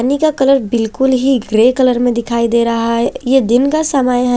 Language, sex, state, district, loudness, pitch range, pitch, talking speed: Hindi, female, Chandigarh, Chandigarh, -13 LUFS, 235-270 Hz, 245 Hz, 235 wpm